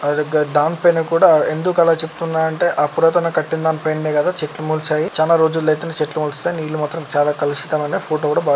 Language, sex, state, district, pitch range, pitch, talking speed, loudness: Telugu, male, Telangana, Karimnagar, 150-165 Hz, 155 Hz, 170 wpm, -17 LUFS